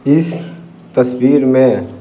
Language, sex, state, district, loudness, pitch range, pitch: Hindi, male, Bihar, Patna, -13 LUFS, 130-165 Hz, 140 Hz